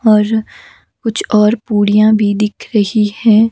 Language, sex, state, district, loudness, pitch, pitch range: Hindi, female, Himachal Pradesh, Shimla, -13 LUFS, 215 Hz, 210-220 Hz